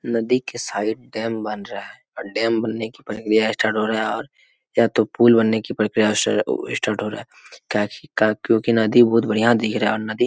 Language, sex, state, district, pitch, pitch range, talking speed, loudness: Hindi, male, Jharkhand, Jamtara, 110 Hz, 110-115 Hz, 225 wpm, -20 LUFS